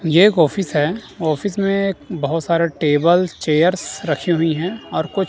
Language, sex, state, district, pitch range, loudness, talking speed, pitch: Hindi, male, Punjab, Kapurthala, 155-190 Hz, -18 LUFS, 170 wpm, 170 Hz